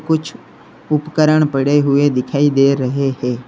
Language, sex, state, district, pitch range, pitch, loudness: Hindi, male, Uttar Pradesh, Lalitpur, 135-155 Hz, 140 Hz, -15 LUFS